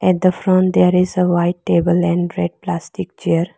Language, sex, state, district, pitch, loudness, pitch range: English, female, Arunachal Pradesh, Lower Dibang Valley, 180 Hz, -17 LUFS, 175-185 Hz